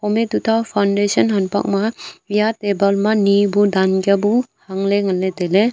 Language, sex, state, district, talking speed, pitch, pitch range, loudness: Wancho, female, Arunachal Pradesh, Longding, 170 wpm, 205 Hz, 200-215 Hz, -17 LUFS